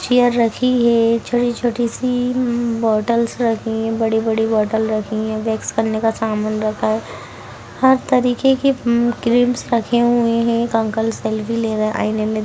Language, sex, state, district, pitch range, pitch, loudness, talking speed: Hindi, female, Bihar, Sitamarhi, 220-240 Hz, 230 Hz, -18 LUFS, 165 wpm